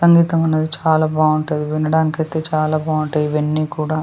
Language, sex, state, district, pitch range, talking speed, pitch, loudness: Telugu, female, Telangana, Nalgonda, 155-160 Hz, 135 wpm, 155 Hz, -17 LUFS